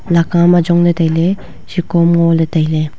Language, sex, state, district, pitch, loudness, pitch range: Wancho, female, Arunachal Pradesh, Longding, 170 Hz, -13 LUFS, 165-175 Hz